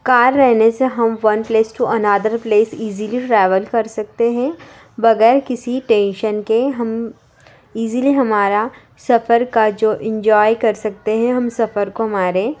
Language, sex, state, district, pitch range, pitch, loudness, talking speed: Hindi, female, Uttar Pradesh, Varanasi, 215-240 Hz, 225 Hz, -16 LUFS, 155 wpm